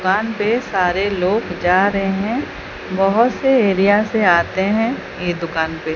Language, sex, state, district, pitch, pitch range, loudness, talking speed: Hindi, female, Odisha, Sambalpur, 195 Hz, 180-215 Hz, -17 LUFS, 160 wpm